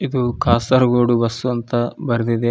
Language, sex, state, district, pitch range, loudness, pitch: Kannada, male, Karnataka, Raichur, 120-125 Hz, -18 LUFS, 120 Hz